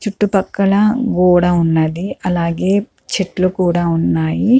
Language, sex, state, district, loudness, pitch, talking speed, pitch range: Telugu, female, Andhra Pradesh, Chittoor, -15 LUFS, 185 Hz, 105 wpm, 170-200 Hz